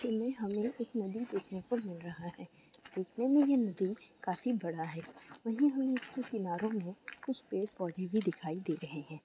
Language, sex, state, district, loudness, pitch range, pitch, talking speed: Hindi, female, Bihar, Sitamarhi, -36 LUFS, 175-240 Hz, 210 Hz, 190 wpm